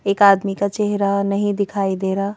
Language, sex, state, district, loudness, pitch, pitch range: Hindi, female, Madhya Pradesh, Bhopal, -18 LUFS, 200 Hz, 195-200 Hz